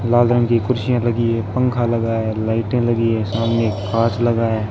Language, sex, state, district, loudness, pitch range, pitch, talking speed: Hindi, male, Rajasthan, Bikaner, -18 LUFS, 115-120 Hz, 115 Hz, 205 wpm